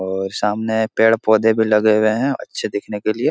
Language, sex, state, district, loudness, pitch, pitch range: Hindi, male, Bihar, Supaul, -17 LUFS, 110 Hz, 105-110 Hz